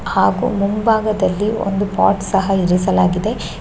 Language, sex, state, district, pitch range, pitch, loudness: Kannada, female, Karnataka, Shimoga, 190-215 Hz, 200 Hz, -17 LUFS